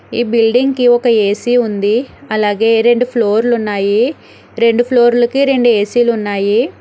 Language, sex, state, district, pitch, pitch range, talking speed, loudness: Telugu, female, Telangana, Hyderabad, 235 Hz, 215-245 Hz, 140 wpm, -13 LUFS